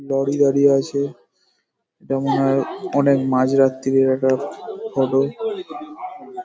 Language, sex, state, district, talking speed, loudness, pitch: Bengali, male, West Bengal, Paschim Medinipur, 110 wpm, -19 LUFS, 140 Hz